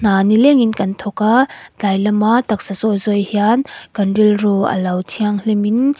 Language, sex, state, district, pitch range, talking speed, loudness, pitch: Mizo, female, Mizoram, Aizawl, 200-220 Hz, 190 wpm, -15 LUFS, 210 Hz